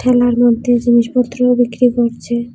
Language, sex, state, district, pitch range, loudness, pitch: Bengali, female, Tripura, West Tripura, 235-245 Hz, -14 LUFS, 240 Hz